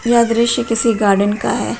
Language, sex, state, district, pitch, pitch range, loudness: Hindi, female, Bihar, Gaya, 230 Hz, 210-235 Hz, -15 LUFS